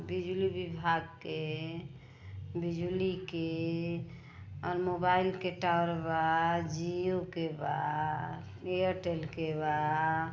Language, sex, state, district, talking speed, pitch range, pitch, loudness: Bhojpuri, female, Uttar Pradesh, Ghazipur, 95 wpm, 155-180 Hz, 165 Hz, -34 LUFS